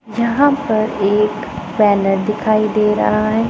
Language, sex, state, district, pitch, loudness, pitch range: Hindi, female, Punjab, Pathankot, 215 Hz, -16 LUFS, 210-220 Hz